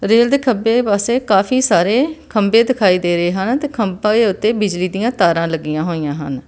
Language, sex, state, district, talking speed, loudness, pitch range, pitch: Punjabi, female, Karnataka, Bangalore, 185 wpm, -15 LUFS, 175-235 Hz, 210 Hz